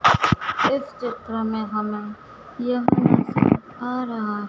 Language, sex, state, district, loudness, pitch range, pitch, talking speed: Hindi, female, Madhya Pradesh, Dhar, -22 LUFS, 215-250 Hz, 235 Hz, 80 wpm